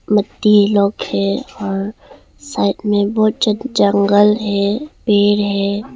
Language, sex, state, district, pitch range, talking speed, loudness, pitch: Hindi, female, Arunachal Pradesh, Longding, 200-215 Hz, 120 wpm, -15 LUFS, 205 Hz